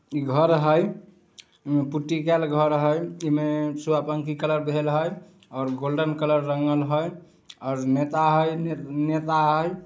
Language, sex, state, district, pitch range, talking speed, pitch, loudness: Maithili, male, Bihar, Samastipur, 150-160 Hz, 145 wpm, 155 Hz, -24 LUFS